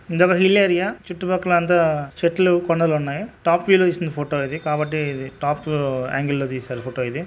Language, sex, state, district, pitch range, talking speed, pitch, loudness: Telugu, male, Andhra Pradesh, Guntur, 140-175 Hz, 205 wpm, 155 Hz, -20 LUFS